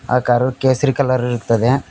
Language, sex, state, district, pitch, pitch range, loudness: Kannada, male, Karnataka, Koppal, 125 Hz, 120-135 Hz, -16 LUFS